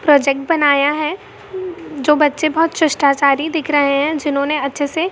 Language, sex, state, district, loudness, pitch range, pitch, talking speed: Hindi, female, Jharkhand, Jamtara, -15 LUFS, 285-320 Hz, 300 Hz, 165 wpm